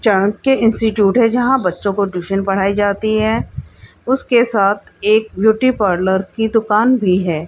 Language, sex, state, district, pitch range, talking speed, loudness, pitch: Hindi, female, Haryana, Jhajjar, 195-225 Hz, 150 wpm, -15 LUFS, 210 Hz